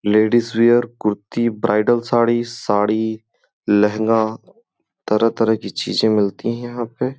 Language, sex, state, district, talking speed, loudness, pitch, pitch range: Hindi, male, Uttar Pradesh, Gorakhpur, 115 wpm, -18 LUFS, 115 Hz, 105-120 Hz